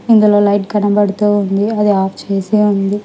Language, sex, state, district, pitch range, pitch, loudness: Telugu, female, Telangana, Hyderabad, 200-210 Hz, 205 Hz, -13 LUFS